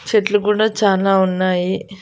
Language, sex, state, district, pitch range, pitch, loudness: Telugu, female, Andhra Pradesh, Annamaya, 190-210 Hz, 195 Hz, -16 LUFS